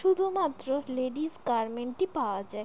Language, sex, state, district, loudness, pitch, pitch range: Bengali, female, West Bengal, Jalpaiguri, -31 LUFS, 265 Hz, 235-330 Hz